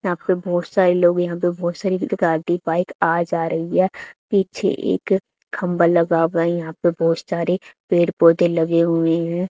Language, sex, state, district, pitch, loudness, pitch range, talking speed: Hindi, female, Haryana, Charkhi Dadri, 175 Hz, -19 LUFS, 165-180 Hz, 190 wpm